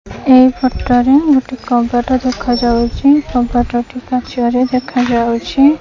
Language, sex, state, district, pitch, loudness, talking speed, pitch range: Odia, female, Odisha, Khordha, 250 Hz, -13 LUFS, 85 wpm, 240-260 Hz